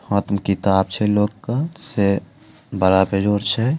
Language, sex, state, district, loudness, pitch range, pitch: Hindi, male, Bihar, Begusarai, -19 LUFS, 100-110 Hz, 100 Hz